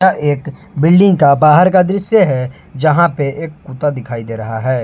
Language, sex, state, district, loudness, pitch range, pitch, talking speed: Hindi, male, Jharkhand, Palamu, -13 LUFS, 130-180 Hz, 150 Hz, 185 wpm